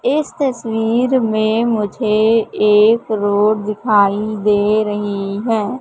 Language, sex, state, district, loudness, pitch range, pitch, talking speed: Hindi, female, Madhya Pradesh, Katni, -16 LUFS, 210-230 Hz, 215 Hz, 105 wpm